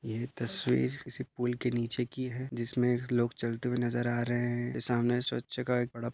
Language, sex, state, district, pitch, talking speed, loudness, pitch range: Hindi, male, Maharashtra, Dhule, 120 Hz, 205 wpm, -32 LUFS, 120-125 Hz